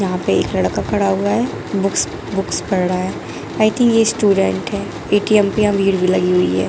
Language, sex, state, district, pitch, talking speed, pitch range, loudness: Hindi, female, Jharkhand, Jamtara, 195 Hz, 225 wpm, 185-210 Hz, -17 LUFS